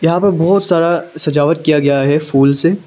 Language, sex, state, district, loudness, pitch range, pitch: Hindi, male, Arunachal Pradesh, Longding, -13 LUFS, 145-175 Hz, 165 Hz